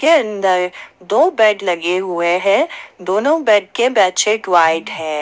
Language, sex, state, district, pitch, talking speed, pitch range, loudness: Hindi, female, Jharkhand, Ranchi, 190 Hz, 150 wpm, 175-225 Hz, -15 LUFS